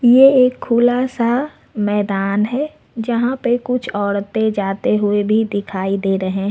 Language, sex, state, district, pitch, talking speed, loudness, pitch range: Hindi, female, Jharkhand, Ranchi, 220 Hz, 145 wpm, -17 LUFS, 200-250 Hz